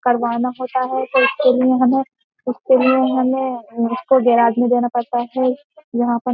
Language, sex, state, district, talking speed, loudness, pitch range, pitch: Hindi, female, Uttar Pradesh, Jyotiba Phule Nagar, 180 wpm, -17 LUFS, 240-260 Hz, 255 Hz